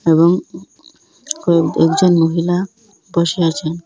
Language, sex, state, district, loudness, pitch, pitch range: Bengali, female, Assam, Hailakandi, -15 LUFS, 170 Hz, 165-185 Hz